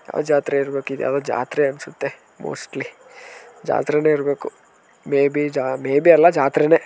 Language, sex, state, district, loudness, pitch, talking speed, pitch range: Kannada, male, Karnataka, Dharwad, -19 LUFS, 140 Hz, 130 wpm, 140-150 Hz